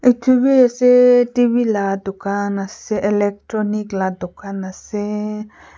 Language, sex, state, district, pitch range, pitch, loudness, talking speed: Nagamese, female, Nagaland, Kohima, 195-245 Hz, 210 Hz, -17 LUFS, 105 wpm